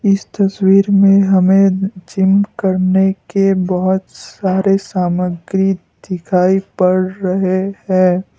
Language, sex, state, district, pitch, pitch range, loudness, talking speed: Hindi, male, Assam, Kamrup Metropolitan, 190 Hz, 185-195 Hz, -14 LUFS, 100 wpm